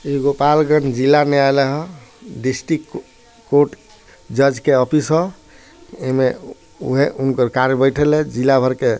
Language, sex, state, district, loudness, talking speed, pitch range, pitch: Bhojpuri, male, Bihar, Gopalganj, -17 LUFS, 145 wpm, 130-150 Hz, 140 Hz